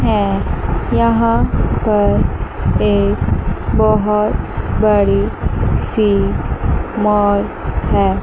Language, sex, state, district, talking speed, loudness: Hindi, male, Chandigarh, Chandigarh, 65 wpm, -16 LUFS